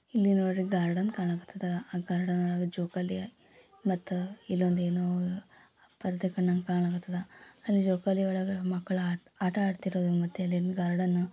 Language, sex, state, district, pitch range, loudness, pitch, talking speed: Kannada, female, Karnataka, Gulbarga, 180-190 Hz, -31 LUFS, 180 Hz, 125 wpm